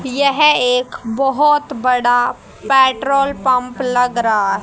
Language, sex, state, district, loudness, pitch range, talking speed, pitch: Hindi, female, Haryana, Charkhi Dadri, -15 LUFS, 245-275 Hz, 105 wpm, 255 Hz